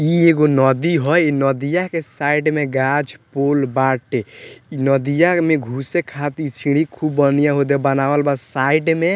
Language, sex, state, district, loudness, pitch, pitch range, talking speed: Bhojpuri, male, Bihar, Muzaffarpur, -17 LUFS, 145 Hz, 135-155 Hz, 185 wpm